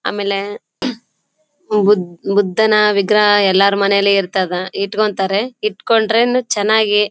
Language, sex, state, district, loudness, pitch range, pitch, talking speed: Kannada, female, Karnataka, Bellary, -15 LUFS, 200-220 Hz, 205 Hz, 75 wpm